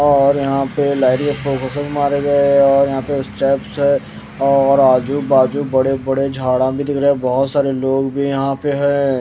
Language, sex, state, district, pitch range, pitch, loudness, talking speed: Hindi, male, Bihar, West Champaran, 135-140 Hz, 140 Hz, -16 LUFS, 210 wpm